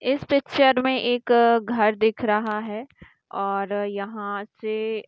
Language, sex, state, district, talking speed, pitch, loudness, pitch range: Hindi, female, Bihar, Jamui, 140 wpm, 220 Hz, -22 LUFS, 210-245 Hz